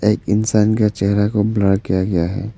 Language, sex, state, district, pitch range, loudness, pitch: Hindi, male, Arunachal Pradesh, Papum Pare, 95-105 Hz, -17 LUFS, 105 Hz